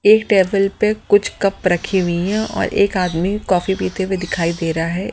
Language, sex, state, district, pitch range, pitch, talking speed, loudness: Hindi, female, Delhi, New Delhi, 180-200 Hz, 190 Hz, 210 wpm, -17 LUFS